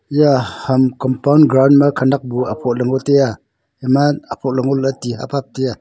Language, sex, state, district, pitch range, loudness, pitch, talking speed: Wancho, male, Arunachal Pradesh, Longding, 125-140 Hz, -15 LUFS, 130 Hz, 205 wpm